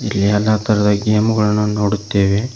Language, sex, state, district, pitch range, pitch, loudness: Kannada, male, Karnataka, Koppal, 100-105 Hz, 105 Hz, -16 LUFS